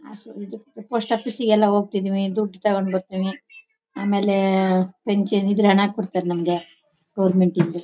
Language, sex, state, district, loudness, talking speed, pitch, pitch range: Kannada, female, Karnataka, Shimoga, -21 LUFS, 140 wpm, 200 Hz, 190-215 Hz